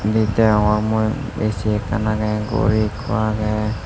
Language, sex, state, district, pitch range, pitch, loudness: Chakma, male, Tripura, Unakoti, 105-110 Hz, 110 Hz, -19 LUFS